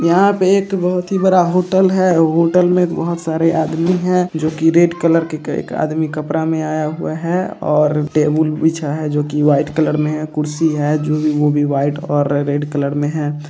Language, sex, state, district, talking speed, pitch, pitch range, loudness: Hindi, male, Bihar, Purnia, 220 wpm, 155 Hz, 150-170 Hz, -16 LUFS